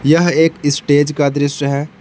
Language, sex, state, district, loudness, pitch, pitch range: Hindi, male, Jharkhand, Palamu, -14 LUFS, 145 Hz, 145-160 Hz